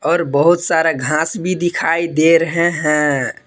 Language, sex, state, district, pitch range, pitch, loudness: Hindi, male, Jharkhand, Palamu, 155-170 Hz, 165 Hz, -15 LUFS